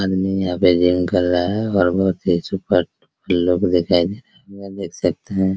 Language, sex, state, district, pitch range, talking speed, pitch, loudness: Hindi, male, Bihar, Araria, 90-100 Hz, 195 wpm, 95 Hz, -18 LUFS